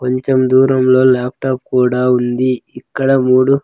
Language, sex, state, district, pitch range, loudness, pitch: Telugu, male, Andhra Pradesh, Sri Satya Sai, 125-130 Hz, -13 LUFS, 130 Hz